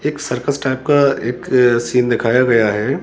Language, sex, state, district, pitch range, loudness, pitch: Hindi, male, Rajasthan, Jaipur, 120-140 Hz, -15 LUFS, 125 Hz